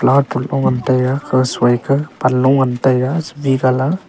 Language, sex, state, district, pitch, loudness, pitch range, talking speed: Wancho, male, Arunachal Pradesh, Longding, 130 Hz, -15 LUFS, 130-140 Hz, 160 wpm